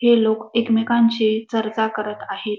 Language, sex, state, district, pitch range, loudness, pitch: Marathi, female, Maharashtra, Dhule, 215-230 Hz, -20 LUFS, 220 Hz